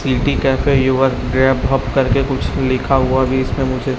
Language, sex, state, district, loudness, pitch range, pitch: Hindi, male, Chhattisgarh, Raipur, -16 LUFS, 130-135 Hz, 130 Hz